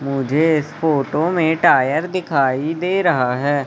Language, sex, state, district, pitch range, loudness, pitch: Hindi, male, Madhya Pradesh, Katni, 140-165 Hz, -17 LUFS, 155 Hz